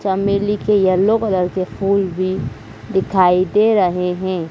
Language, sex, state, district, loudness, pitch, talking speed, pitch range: Hindi, female, Madhya Pradesh, Dhar, -17 LUFS, 185 Hz, 145 wpm, 180-200 Hz